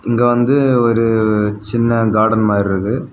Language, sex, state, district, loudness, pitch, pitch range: Tamil, male, Tamil Nadu, Kanyakumari, -14 LUFS, 115 Hz, 105-120 Hz